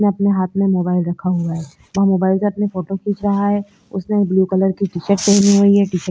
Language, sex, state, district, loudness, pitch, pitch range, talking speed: Hindi, female, Chhattisgarh, Korba, -17 LUFS, 195 Hz, 185-200 Hz, 275 wpm